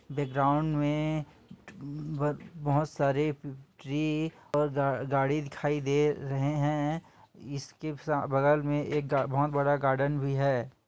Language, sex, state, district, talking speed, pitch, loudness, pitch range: Hindi, male, Chhattisgarh, Kabirdham, 120 wpm, 145 Hz, -30 LUFS, 140-150 Hz